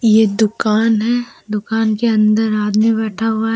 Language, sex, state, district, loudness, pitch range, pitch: Hindi, female, Jharkhand, Deoghar, -16 LUFS, 215-225 Hz, 220 Hz